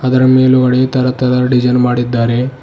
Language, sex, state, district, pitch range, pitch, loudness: Kannada, male, Karnataka, Bidar, 125-130 Hz, 125 Hz, -12 LUFS